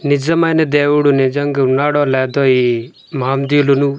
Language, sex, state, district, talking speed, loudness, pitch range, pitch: Telugu, male, Andhra Pradesh, Manyam, 105 wpm, -14 LUFS, 135-145 Hz, 140 Hz